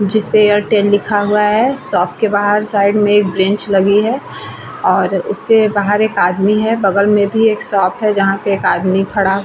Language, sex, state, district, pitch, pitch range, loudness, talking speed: Hindi, female, Bihar, Vaishali, 205 Hz, 195-215 Hz, -13 LUFS, 215 wpm